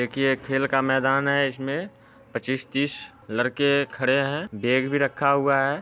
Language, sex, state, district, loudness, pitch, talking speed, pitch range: Hindi, male, Bihar, Muzaffarpur, -24 LUFS, 135 Hz, 175 wpm, 135-140 Hz